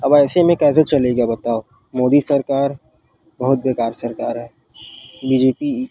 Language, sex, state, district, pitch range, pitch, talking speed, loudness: Chhattisgarhi, female, Chhattisgarh, Rajnandgaon, 120-145 Hz, 130 Hz, 160 wpm, -17 LUFS